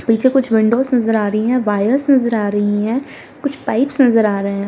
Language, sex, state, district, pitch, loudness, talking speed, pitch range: Hindi, female, Bihar, Jamui, 230 Hz, -15 LUFS, 230 wpm, 210-265 Hz